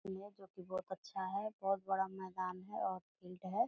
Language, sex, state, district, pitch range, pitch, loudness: Hindi, female, Bihar, Purnia, 185-195 Hz, 190 Hz, -42 LUFS